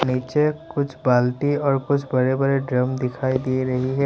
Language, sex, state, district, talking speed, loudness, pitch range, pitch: Hindi, male, Assam, Sonitpur, 175 wpm, -21 LUFS, 130-140 Hz, 130 Hz